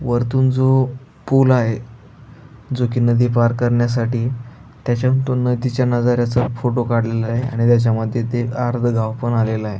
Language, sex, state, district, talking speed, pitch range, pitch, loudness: Marathi, male, Maharashtra, Aurangabad, 140 wpm, 120-125 Hz, 120 Hz, -18 LUFS